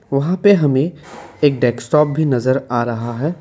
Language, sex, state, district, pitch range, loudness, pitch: Hindi, male, Assam, Kamrup Metropolitan, 125-155 Hz, -16 LUFS, 145 Hz